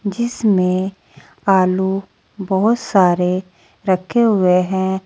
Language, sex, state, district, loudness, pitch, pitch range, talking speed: Hindi, female, Uttar Pradesh, Saharanpur, -17 LUFS, 190 Hz, 185-200 Hz, 85 wpm